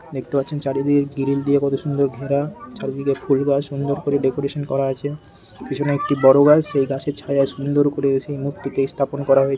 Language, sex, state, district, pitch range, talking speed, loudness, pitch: Bengali, male, West Bengal, Malda, 135-145 Hz, 175 wpm, -20 LUFS, 140 Hz